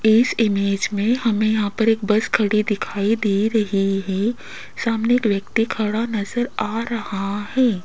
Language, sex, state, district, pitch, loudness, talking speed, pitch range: Hindi, female, Rajasthan, Jaipur, 215 Hz, -20 LUFS, 160 wpm, 205-225 Hz